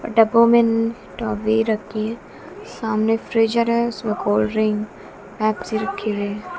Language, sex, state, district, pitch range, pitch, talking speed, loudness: Hindi, female, Bihar, West Champaran, 215-230 Hz, 220 Hz, 145 wpm, -20 LUFS